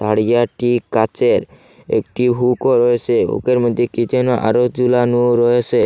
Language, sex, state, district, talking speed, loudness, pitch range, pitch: Bengali, male, Assam, Hailakandi, 125 wpm, -16 LUFS, 120-125 Hz, 120 Hz